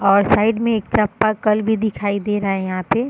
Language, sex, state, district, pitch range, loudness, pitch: Hindi, female, Bihar, Sitamarhi, 200-220 Hz, -18 LUFS, 210 Hz